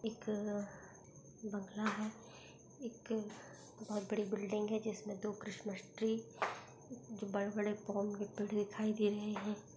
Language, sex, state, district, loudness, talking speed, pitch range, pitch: Hindi, male, Bihar, Darbhanga, -41 LUFS, 115 wpm, 205-215 Hz, 210 Hz